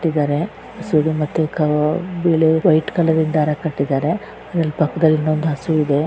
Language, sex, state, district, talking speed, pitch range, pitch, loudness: Kannada, female, Karnataka, Raichur, 80 wpm, 150-165 Hz, 155 Hz, -18 LUFS